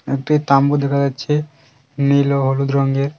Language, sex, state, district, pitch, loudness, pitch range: Bengali, male, West Bengal, Cooch Behar, 140 Hz, -17 LUFS, 135-145 Hz